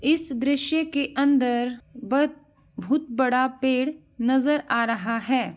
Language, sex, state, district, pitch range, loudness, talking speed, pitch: Hindi, female, Uttar Pradesh, Ghazipur, 245-285 Hz, -24 LUFS, 130 wpm, 265 Hz